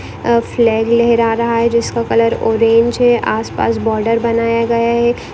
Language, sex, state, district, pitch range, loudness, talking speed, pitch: Hindi, female, Rajasthan, Nagaur, 230-235 Hz, -14 LUFS, 170 wpm, 230 Hz